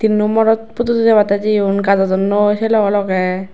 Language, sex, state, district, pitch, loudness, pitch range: Chakma, female, Tripura, West Tripura, 205 Hz, -14 LUFS, 200-220 Hz